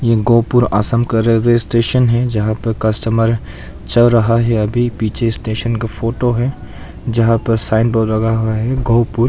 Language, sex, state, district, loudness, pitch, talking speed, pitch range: Hindi, male, Arunachal Pradesh, Papum Pare, -15 LUFS, 115 Hz, 175 wpm, 110-120 Hz